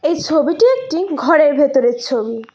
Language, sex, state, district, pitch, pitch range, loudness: Bengali, female, West Bengal, Cooch Behar, 300 Hz, 250-325 Hz, -15 LUFS